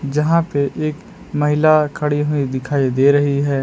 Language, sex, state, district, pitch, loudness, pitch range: Hindi, male, Jharkhand, Palamu, 145 Hz, -17 LUFS, 140-155 Hz